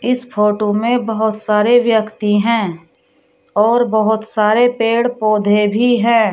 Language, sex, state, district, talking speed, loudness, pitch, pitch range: Hindi, female, Uttar Pradesh, Shamli, 135 wpm, -15 LUFS, 220 Hz, 210-235 Hz